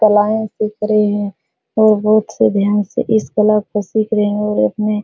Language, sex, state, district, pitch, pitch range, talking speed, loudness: Hindi, female, Bihar, Supaul, 210 Hz, 210-215 Hz, 200 wpm, -15 LUFS